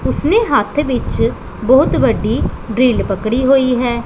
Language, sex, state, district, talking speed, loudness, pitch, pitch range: Punjabi, female, Punjab, Pathankot, 135 wpm, -15 LUFS, 250 Hz, 235-270 Hz